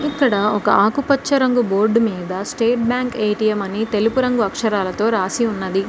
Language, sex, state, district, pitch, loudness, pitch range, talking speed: Telugu, female, Telangana, Mahabubabad, 220 Hz, -18 LUFS, 205-245 Hz, 155 wpm